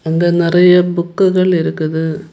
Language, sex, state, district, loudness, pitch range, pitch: Tamil, female, Tamil Nadu, Kanyakumari, -13 LUFS, 160-180 Hz, 175 Hz